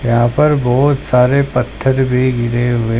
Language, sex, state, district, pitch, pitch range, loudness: Hindi, male, Haryana, Charkhi Dadri, 125 Hz, 120-135 Hz, -14 LUFS